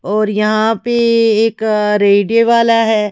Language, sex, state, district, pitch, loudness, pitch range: Hindi, female, Maharashtra, Mumbai Suburban, 220 Hz, -12 LUFS, 210-230 Hz